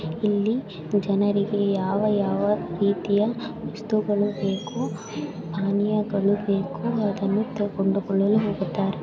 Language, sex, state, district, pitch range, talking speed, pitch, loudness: Kannada, female, Karnataka, Bellary, 195-210 Hz, 85 wpm, 200 Hz, -24 LUFS